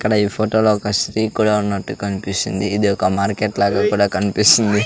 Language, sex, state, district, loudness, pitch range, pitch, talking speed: Telugu, male, Andhra Pradesh, Sri Satya Sai, -17 LUFS, 100-105 Hz, 105 Hz, 175 wpm